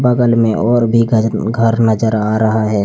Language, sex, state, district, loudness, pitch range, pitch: Hindi, male, Jharkhand, Deoghar, -13 LUFS, 110-115 Hz, 115 Hz